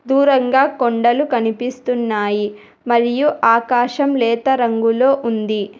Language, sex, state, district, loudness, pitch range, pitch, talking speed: Telugu, female, Telangana, Hyderabad, -16 LUFS, 230-265 Hz, 240 Hz, 85 wpm